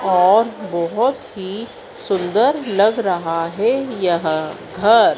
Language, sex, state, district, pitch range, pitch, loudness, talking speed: Hindi, female, Madhya Pradesh, Dhar, 180-230 Hz, 200 Hz, -18 LUFS, 105 wpm